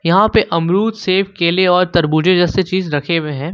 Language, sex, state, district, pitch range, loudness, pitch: Hindi, male, Jharkhand, Ranchi, 165-190 Hz, -15 LUFS, 180 Hz